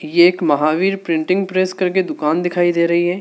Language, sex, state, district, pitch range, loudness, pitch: Hindi, male, Madhya Pradesh, Dhar, 165-185 Hz, -16 LUFS, 175 Hz